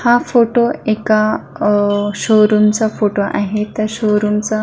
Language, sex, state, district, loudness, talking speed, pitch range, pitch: Marathi, female, Maharashtra, Solapur, -15 LUFS, 155 wpm, 210-220 Hz, 215 Hz